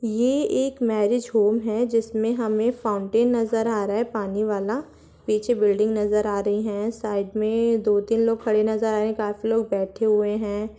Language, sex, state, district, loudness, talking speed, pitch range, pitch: Hindi, female, Jharkhand, Sahebganj, -23 LUFS, 190 wpm, 210-230 Hz, 220 Hz